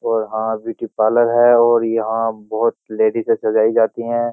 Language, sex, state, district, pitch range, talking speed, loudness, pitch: Hindi, male, Uttar Pradesh, Jyotiba Phule Nagar, 110-120 Hz, 180 wpm, -17 LUFS, 115 Hz